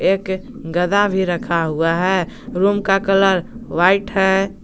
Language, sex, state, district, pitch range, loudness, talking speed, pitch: Hindi, male, Jharkhand, Garhwa, 180-195 Hz, -17 LUFS, 140 wpm, 190 Hz